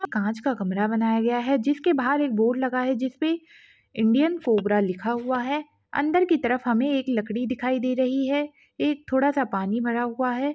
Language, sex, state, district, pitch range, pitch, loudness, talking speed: Hindi, female, Uttarakhand, Tehri Garhwal, 235-285 Hz, 255 Hz, -24 LUFS, 200 wpm